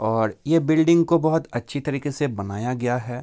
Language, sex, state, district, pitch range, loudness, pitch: Hindi, male, Bihar, Kishanganj, 120-160 Hz, -22 LUFS, 140 Hz